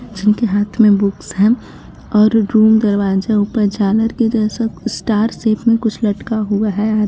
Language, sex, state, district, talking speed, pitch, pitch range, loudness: Hindi, female, Jharkhand, Garhwa, 170 wpm, 215 Hz, 205-225 Hz, -15 LUFS